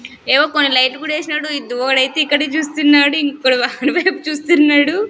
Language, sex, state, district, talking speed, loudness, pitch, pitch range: Telugu, female, Andhra Pradesh, Sri Satya Sai, 140 wpm, -14 LUFS, 290 Hz, 265-305 Hz